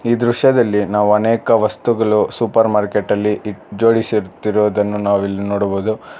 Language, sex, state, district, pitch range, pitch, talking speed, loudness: Kannada, male, Karnataka, Bangalore, 105-115 Hz, 105 Hz, 115 wpm, -16 LUFS